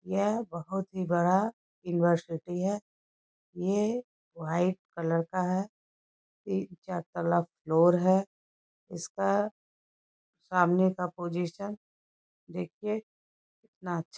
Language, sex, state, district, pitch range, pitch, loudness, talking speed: Hindi, female, West Bengal, North 24 Parganas, 170-195 Hz, 180 Hz, -30 LUFS, 95 wpm